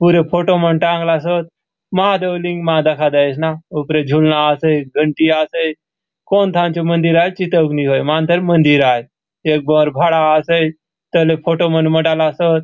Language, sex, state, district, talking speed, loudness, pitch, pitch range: Halbi, male, Chhattisgarh, Bastar, 160 wpm, -15 LUFS, 160 Hz, 155-170 Hz